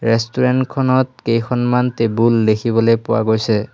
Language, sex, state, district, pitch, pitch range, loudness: Assamese, male, Assam, Hailakandi, 115 Hz, 115-125 Hz, -16 LUFS